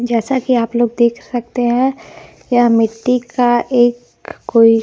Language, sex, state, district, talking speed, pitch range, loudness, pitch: Hindi, female, Bihar, Kaimur, 150 wpm, 235-245 Hz, -15 LUFS, 240 Hz